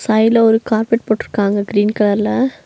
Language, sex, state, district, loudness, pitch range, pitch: Tamil, female, Tamil Nadu, Nilgiris, -15 LUFS, 205-230 Hz, 220 Hz